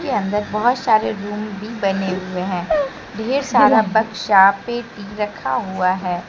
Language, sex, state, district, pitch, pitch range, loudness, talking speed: Hindi, female, Jharkhand, Deoghar, 210 Hz, 195-230 Hz, -19 LUFS, 150 wpm